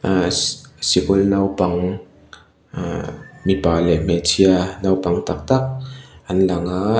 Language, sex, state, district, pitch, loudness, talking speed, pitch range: Mizo, male, Mizoram, Aizawl, 95 Hz, -19 LUFS, 120 wpm, 90-100 Hz